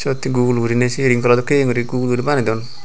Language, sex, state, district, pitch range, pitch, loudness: Chakma, male, Tripura, Unakoti, 120-135 Hz, 125 Hz, -17 LUFS